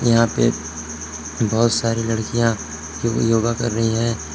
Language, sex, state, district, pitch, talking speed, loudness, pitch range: Hindi, male, Jharkhand, Palamu, 115 Hz, 125 wpm, -20 LUFS, 80-115 Hz